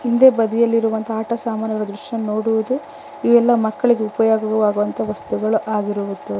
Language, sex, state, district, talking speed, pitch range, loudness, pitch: Kannada, female, Karnataka, Bangalore, 115 wpm, 210-235 Hz, -18 LUFS, 220 Hz